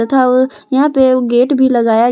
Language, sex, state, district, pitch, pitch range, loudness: Hindi, female, Jharkhand, Palamu, 255 Hz, 240-265 Hz, -12 LUFS